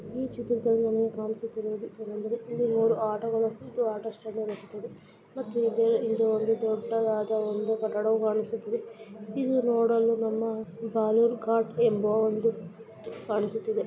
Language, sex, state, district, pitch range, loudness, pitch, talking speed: Kannada, male, Karnataka, Raichur, 220-230 Hz, -28 LUFS, 225 Hz, 110 wpm